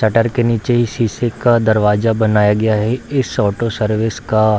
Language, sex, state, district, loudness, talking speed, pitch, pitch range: Hindi, male, Bihar, Darbhanga, -15 LUFS, 195 wpm, 110 Hz, 110-120 Hz